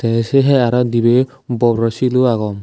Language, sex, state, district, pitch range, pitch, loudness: Chakma, male, Tripura, Dhalai, 115-130 Hz, 120 Hz, -15 LUFS